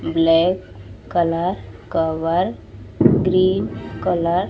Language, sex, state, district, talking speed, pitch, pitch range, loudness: Hindi, female, Odisha, Sambalpur, 80 wpm, 165 Hz, 115-180 Hz, -19 LUFS